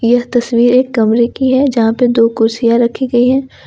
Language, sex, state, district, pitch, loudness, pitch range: Hindi, female, Jharkhand, Ranchi, 240 Hz, -12 LUFS, 230-255 Hz